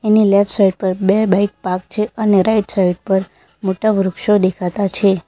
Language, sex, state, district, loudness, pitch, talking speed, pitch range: Gujarati, female, Gujarat, Valsad, -16 LUFS, 195 Hz, 180 wpm, 190-210 Hz